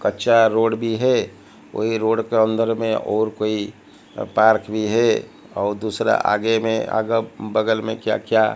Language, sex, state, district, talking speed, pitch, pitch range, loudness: Hindi, male, Odisha, Malkangiri, 160 wpm, 110 Hz, 110-115 Hz, -20 LUFS